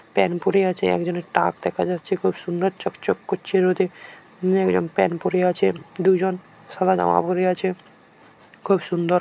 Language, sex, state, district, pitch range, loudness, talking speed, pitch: Bengali, male, West Bengal, Jhargram, 175-190 Hz, -22 LUFS, 150 wpm, 185 Hz